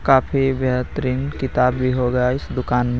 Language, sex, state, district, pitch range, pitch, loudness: Hindi, male, Jharkhand, Garhwa, 125-135 Hz, 130 Hz, -20 LUFS